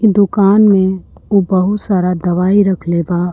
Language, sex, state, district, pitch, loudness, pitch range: Bhojpuri, female, Uttar Pradesh, Gorakhpur, 190 Hz, -13 LUFS, 180-205 Hz